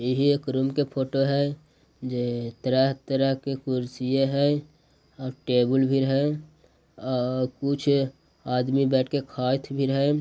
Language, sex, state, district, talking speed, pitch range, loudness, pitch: Magahi, male, Bihar, Jahanabad, 145 wpm, 130-140 Hz, -25 LUFS, 135 Hz